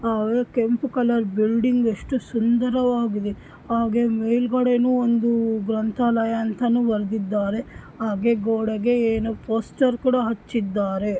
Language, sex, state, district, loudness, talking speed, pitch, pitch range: Kannada, female, Karnataka, Shimoga, -22 LUFS, 60 wpm, 230 Hz, 220-240 Hz